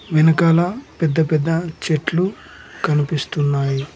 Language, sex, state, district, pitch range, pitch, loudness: Telugu, male, Telangana, Mahabubabad, 150-170 Hz, 160 Hz, -19 LUFS